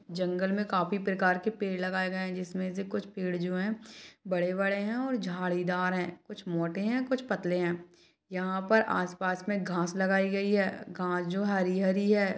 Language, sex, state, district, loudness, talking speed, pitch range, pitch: Hindi, female, Chhattisgarh, Balrampur, -31 LUFS, 195 wpm, 180-200 Hz, 190 Hz